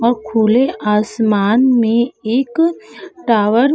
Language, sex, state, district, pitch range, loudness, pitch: Hindi, female, Uttar Pradesh, Budaun, 220-260 Hz, -15 LUFS, 235 Hz